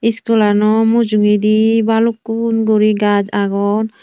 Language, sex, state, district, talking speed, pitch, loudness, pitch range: Chakma, female, Tripura, Unakoti, 90 wpm, 220 Hz, -14 LUFS, 210-225 Hz